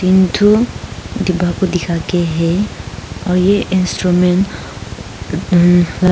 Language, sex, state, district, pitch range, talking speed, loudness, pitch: Hindi, female, Arunachal Pradesh, Papum Pare, 170-190 Hz, 80 wpm, -14 LUFS, 180 Hz